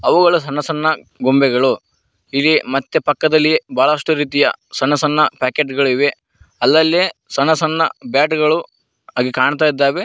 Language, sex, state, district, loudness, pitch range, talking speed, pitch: Kannada, male, Karnataka, Koppal, -16 LUFS, 140-160 Hz, 120 wpm, 150 Hz